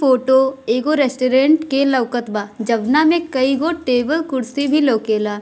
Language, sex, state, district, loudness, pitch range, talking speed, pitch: Bhojpuri, female, Bihar, Gopalganj, -17 LUFS, 240-285 Hz, 145 wpm, 265 Hz